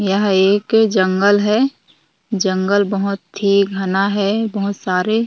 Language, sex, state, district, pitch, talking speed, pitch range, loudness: Hindi, female, Chhattisgarh, Raigarh, 200 Hz, 125 wpm, 195-205 Hz, -16 LUFS